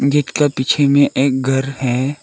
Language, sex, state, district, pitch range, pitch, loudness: Hindi, male, Arunachal Pradesh, Lower Dibang Valley, 135-145 Hz, 135 Hz, -16 LUFS